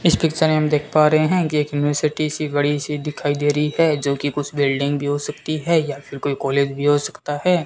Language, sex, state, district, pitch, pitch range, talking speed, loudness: Hindi, male, Rajasthan, Bikaner, 145 Hz, 145-155 Hz, 260 wpm, -20 LUFS